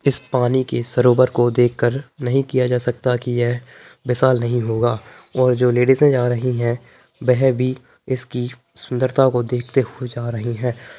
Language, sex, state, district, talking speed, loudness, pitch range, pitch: Hindi, male, Bihar, Gaya, 175 wpm, -19 LUFS, 120-130 Hz, 125 Hz